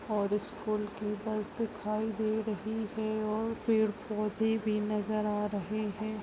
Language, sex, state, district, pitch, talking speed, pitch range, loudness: Hindi, female, Chhattisgarh, Balrampur, 215 Hz, 155 wpm, 210-220 Hz, -33 LUFS